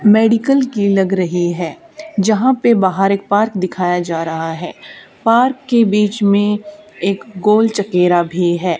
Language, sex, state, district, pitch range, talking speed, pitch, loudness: Hindi, female, Haryana, Charkhi Dadri, 180-225 Hz, 155 wpm, 200 Hz, -15 LUFS